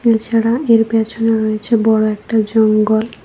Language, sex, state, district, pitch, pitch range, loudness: Bengali, female, Tripura, West Tripura, 225 Hz, 220-230 Hz, -14 LUFS